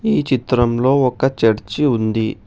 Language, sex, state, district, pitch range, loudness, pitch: Telugu, male, Telangana, Hyderabad, 115-135 Hz, -17 LUFS, 125 Hz